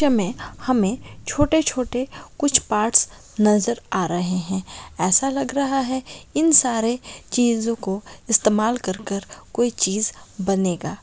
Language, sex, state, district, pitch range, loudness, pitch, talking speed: Maithili, female, Bihar, Darbhanga, 195-255 Hz, -21 LUFS, 230 Hz, 135 wpm